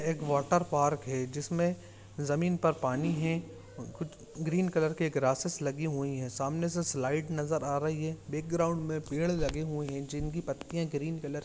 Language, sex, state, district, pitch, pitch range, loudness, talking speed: Hindi, male, Chhattisgarh, Kabirdham, 155 Hz, 140-165 Hz, -32 LUFS, 185 wpm